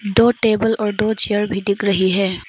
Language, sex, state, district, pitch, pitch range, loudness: Hindi, female, Arunachal Pradesh, Papum Pare, 210 Hz, 200-220 Hz, -17 LUFS